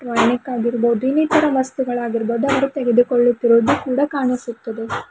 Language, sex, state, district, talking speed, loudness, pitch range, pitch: Kannada, female, Karnataka, Bidar, 95 wpm, -18 LUFS, 235-265 Hz, 245 Hz